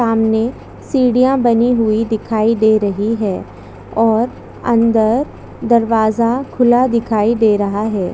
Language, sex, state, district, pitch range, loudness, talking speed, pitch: Hindi, female, Chhattisgarh, Bastar, 215-235 Hz, -15 LUFS, 120 wpm, 225 Hz